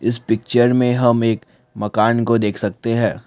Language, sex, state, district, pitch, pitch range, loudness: Hindi, male, Assam, Kamrup Metropolitan, 115 Hz, 110-120 Hz, -18 LUFS